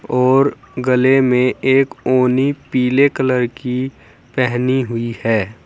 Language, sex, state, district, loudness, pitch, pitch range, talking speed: Hindi, male, Uttar Pradesh, Saharanpur, -16 LUFS, 130 Hz, 125-130 Hz, 115 wpm